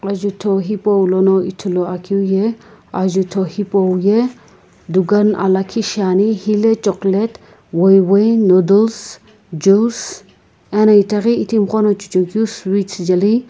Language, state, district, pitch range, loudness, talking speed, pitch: Sumi, Nagaland, Kohima, 190-215 Hz, -15 LUFS, 65 wpm, 200 Hz